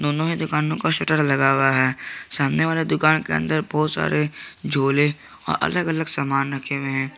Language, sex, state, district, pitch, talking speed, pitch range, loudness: Hindi, male, Jharkhand, Garhwa, 150 Hz, 185 wpm, 135-155 Hz, -21 LUFS